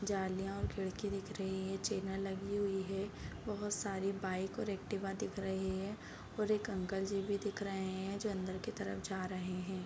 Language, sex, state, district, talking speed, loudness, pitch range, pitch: Hindi, female, Bihar, Darbhanga, 200 wpm, -40 LUFS, 190-200 Hz, 195 Hz